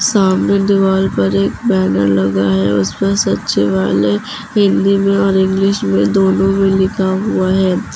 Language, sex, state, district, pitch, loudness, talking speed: Hindi, female, Uttar Pradesh, Lucknow, 190 Hz, -14 LUFS, 150 wpm